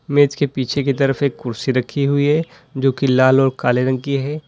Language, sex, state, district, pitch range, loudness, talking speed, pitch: Hindi, male, Uttar Pradesh, Lalitpur, 130-145 Hz, -17 LUFS, 240 wpm, 135 Hz